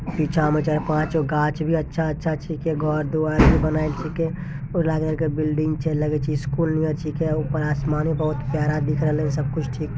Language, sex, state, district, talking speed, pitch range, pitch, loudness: Angika, male, Bihar, Begusarai, 205 wpm, 150-160 Hz, 155 Hz, -22 LUFS